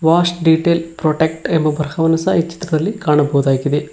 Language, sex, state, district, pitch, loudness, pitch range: Kannada, male, Karnataka, Koppal, 160 Hz, -16 LUFS, 150-170 Hz